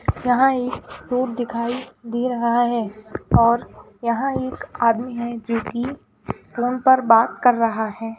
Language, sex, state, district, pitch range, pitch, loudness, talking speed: Hindi, female, Bihar, Muzaffarpur, 230-250 Hz, 240 Hz, -21 LUFS, 145 wpm